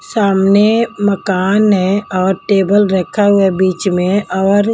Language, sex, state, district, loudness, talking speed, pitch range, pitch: Hindi, female, Maharashtra, Mumbai Suburban, -13 LUFS, 140 wpm, 190-205 Hz, 200 Hz